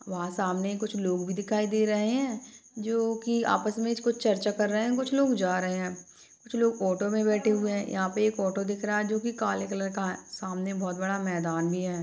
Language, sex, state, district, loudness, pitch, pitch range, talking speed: Hindi, female, Chhattisgarh, Bastar, -28 LUFS, 210 Hz, 190-225 Hz, 250 wpm